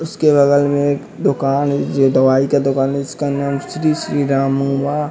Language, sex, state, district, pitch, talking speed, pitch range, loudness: Hindi, male, Bihar, West Champaran, 140 Hz, 200 wpm, 135-145 Hz, -16 LUFS